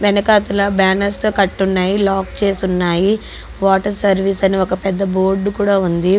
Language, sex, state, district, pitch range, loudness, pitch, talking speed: Telugu, female, Andhra Pradesh, Guntur, 190-200 Hz, -16 LUFS, 195 Hz, 145 wpm